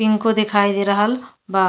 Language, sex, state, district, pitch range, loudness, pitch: Bhojpuri, female, Uttar Pradesh, Deoria, 200-220 Hz, -18 LUFS, 210 Hz